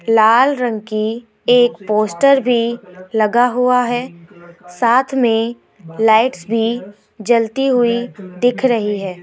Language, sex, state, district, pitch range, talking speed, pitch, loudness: Hindi, female, Rajasthan, Jaipur, 210-245 Hz, 115 wpm, 230 Hz, -15 LUFS